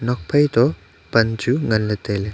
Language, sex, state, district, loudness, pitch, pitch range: Wancho, male, Arunachal Pradesh, Longding, -19 LUFS, 110 Hz, 100-120 Hz